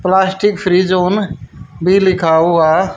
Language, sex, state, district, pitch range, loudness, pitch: Hindi, female, Haryana, Jhajjar, 165-190 Hz, -13 LUFS, 185 Hz